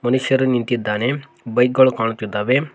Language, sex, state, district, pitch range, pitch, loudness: Kannada, male, Karnataka, Koppal, 115-130 Hz, 125 Hz, -18 LUFS